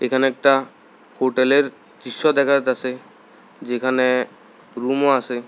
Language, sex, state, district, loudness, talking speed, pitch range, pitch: Bengali, male, Tripura, South Tripura, -19 LUFS, 120 wpm, 125-135 Hz, 130 Hz